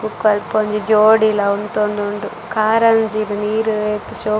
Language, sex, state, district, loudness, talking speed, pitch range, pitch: Tulu, female, Karnataka, Dakshina Kannada, -16 LUFS, 110 wpm, 210-220 Hz, 215 Hz